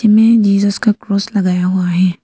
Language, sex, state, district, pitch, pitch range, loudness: Hindi, female, Arunachal Pradesh, Lower Dibang Valley, 200 Hz, 185-215 Hz, -13 LUFS